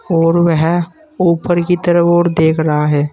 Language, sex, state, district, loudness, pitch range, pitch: Hindi, male, Uttar Pradesh, Saharanpur, -13 LUFS, 160-175 Hz, 170 Hz